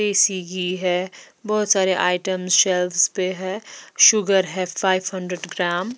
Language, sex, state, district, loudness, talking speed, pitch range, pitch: Hindi, female, Bihar, West Champaran, -20 LUFS, 150 wpm, 180-195 Hz, 185 Hz